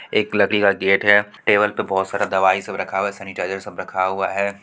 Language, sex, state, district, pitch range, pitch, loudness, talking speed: Hindi, female, Bihar, Supaul, 95-105 Hz, 100 Hz, -19 LUFS, 245 wpm